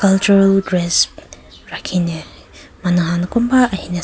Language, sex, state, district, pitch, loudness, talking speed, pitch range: Nagamese, female, Nagaland, Kohima, 180 Hz, -16 LUFS, 105 wpm, 170-195 Hz